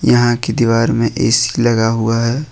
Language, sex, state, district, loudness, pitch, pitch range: Hindi, male, Jharkhand, Ranchi, -14 LUFS, 115 Hz, 115-120 Hz